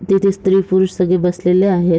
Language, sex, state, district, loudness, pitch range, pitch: Marathi, female, Maharashtra, Sindhudurg, -15 LUFS, 180-190 Hz, 185 Hz